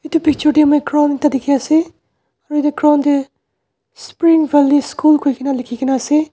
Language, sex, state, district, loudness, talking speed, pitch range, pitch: Nagamese, male, Nagaland, Dimapur, -14 LUFS, 160 wpm, 280-305 Hz, 295 Hz